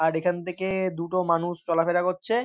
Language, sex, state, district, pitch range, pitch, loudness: Bengali, male, West Bengal, North 24 Parganas, 170-185 Hz, 180 Hz, -26 LUFS